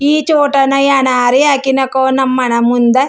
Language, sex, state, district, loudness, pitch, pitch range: Kannada, female, Karnataka, Chamarajanagar, -11 LUFS, 265 Hz, 255-280 Hz